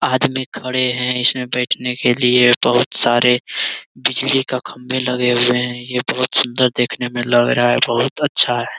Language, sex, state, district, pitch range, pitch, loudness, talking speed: Hindi, male, Bihar, Jamui, 120-125 Hz, 125 Hz, -16 LUFS, 175 wpm